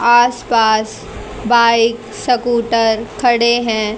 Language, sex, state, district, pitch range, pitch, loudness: Hindi, female, Haryana, Jhajjar, 220-240 Hz, 230 Hz, -14 LUFS